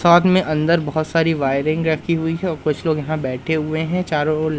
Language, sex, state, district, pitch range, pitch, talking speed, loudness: Hindi, male, Madhya Pradesh, Umaria, 155-165 Hz, 155 Hz, 225 wpm, -19 LUFS